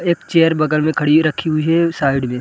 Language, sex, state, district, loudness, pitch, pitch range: Hindi, male, Bihar, Gaya, -16 LUFS, 155 Hz, 150-165 Hz